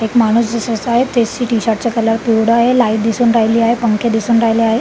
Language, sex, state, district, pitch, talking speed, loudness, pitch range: Marathi, female, Maharashtra, Solapur, 230 Hz, 210 wpm, -14 LUFS, 225-235 Hz